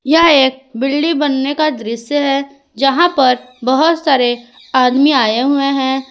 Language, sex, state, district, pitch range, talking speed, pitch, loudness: Hindi, female, Jharkhand, Ranchi, 255-290 Hz, 145 wpm, 275 Hz, -14 LUFS